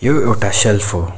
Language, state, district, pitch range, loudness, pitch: Nepali, West Bengal, Darjeeling, 100-120 Hz, -14 LUFS, 105 Hz